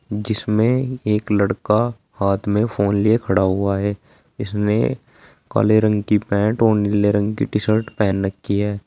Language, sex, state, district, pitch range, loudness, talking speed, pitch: Hindi, male, Uttar Pradesh, Saharanpur, 100-110 Hz, -19 LUFS, 170 wpm, 105 Hz